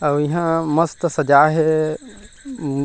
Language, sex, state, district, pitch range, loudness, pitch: Chhattisgarhi, male, Chhattisgarh, Rajnandgaon, 150-165 Hz, -18 LUFS, 155 Hz